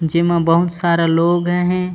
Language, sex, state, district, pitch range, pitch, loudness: Chhattisgarhi, male, Chhattisgarh, Raigarh, 170-175 Hz, 170 Hz, -16 LUFS